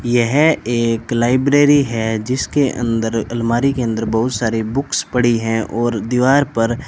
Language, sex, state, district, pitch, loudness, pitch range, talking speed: Hindi, male, Rajasthan, Bikaner, 120 Hz, -16 LUFS, 115-130 Hz, 155 wpm